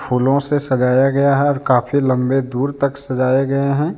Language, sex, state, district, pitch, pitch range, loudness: Hindi, male, Jharkhand, Deoghar, 135 Hz, 130-140 Hz, -16 LUFS